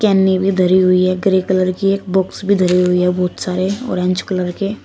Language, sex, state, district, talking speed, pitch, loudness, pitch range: Hindi, female, Uttar Pradesh, Shamli, 245 wpm, 185 Hz, -15 LUFS, 180-195 Hz